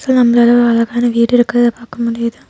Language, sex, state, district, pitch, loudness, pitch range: Tamil, female, Tamil Nadu, Nilgiris, 240 Hz, -13 LUFS, 235-240 Hz